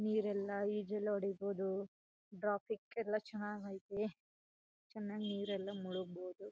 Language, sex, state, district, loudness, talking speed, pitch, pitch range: Kannada, female, Karnataka, Chamarajanagar, -42 LUFS, 90 wpm, 205 Hz, 195-210 Hz